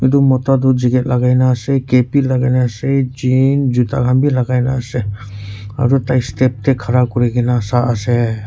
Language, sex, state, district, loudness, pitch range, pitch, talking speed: Nagamese, male, Nagaland, Kohima, -15 LUFS, 120-130 Hz, 125 Hz, 200 wpm